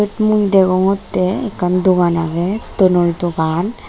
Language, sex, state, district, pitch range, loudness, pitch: Chakma, female, Tripura, Dhalai, 175-205 Hz, -15 LUFS, 185 Hz